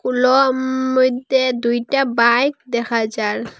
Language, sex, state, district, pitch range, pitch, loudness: Bengali, female, Assam, Hailakandi, 235-260 Hz, 255 Hz, -17 LUFS